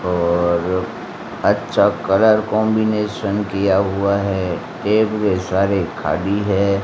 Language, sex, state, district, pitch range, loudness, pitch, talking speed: Hindi, male, Rajasthan, Bikaner, 95-105 Hz, -18 LUFS, 100 Hz, 90 wpm